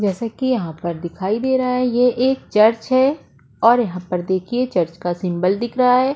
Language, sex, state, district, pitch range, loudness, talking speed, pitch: Hindi, female, Goa, North and South Goa, 180-250 Hz, -19 LUFS, 215 wpm, 230 Hz